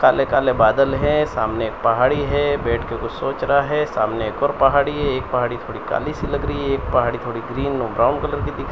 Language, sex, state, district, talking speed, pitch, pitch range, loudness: Hindi, male, Gujarat, Valsad, 255 wpm, 135 Hz, 115-145 Hz, -20 LUFS